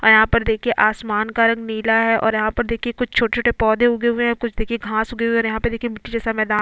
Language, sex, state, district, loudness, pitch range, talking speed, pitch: Hindi, female, Chhattisgarh, Bastar, -19 LUFS, 220-235 Hz, 290 wpm, 225 Hz